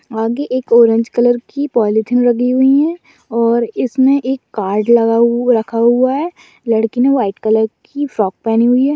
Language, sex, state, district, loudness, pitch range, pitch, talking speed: Bhojpuri, female, Uttar Pradesh, Gorakhpur, -14 LUFS, 225-265 Hz, 240 Hz, 175 wpm